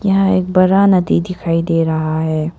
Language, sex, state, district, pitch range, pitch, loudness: Hindi, female, Arunachal Pradesh, Papum Pare, 160-185 Hz, 175 Hz, -14 LUFS